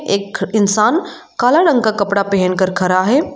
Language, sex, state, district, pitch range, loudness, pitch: Hindi, female, Arunachal Pradesh, Lower Dibang Valley, 195-280 Hz, -15 LUFS, 210 Hz